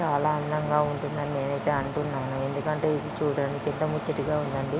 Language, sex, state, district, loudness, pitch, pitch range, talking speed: Telugu, female, Andhra Pradesh, Chittoor, -28 LUFS, 145 Hz, 140-150 Hz, 125 wpm